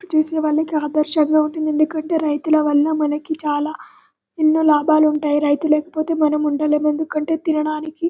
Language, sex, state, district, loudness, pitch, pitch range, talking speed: Telugu, male, Telangana, Karimnagar, -18 LUFS, 305 Hz, 300-315 Hz, 140 wpm